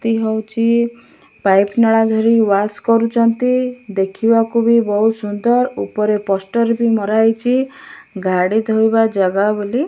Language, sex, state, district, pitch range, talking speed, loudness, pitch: Odia, male, Odisha, Malkangiri, 210-235 Hz, 120 wpm, -16 LUFS, 225 Hz